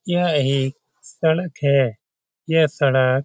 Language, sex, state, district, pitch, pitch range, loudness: Hindi, male, Bihar, Jamui, 140 Hz, 135-160 Hz, -20 LUFS